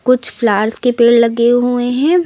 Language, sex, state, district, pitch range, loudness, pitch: Hindi, female, Uttar Pradesh, Lucknow, 235-250 Hz, -13 LUFS, 245 Hz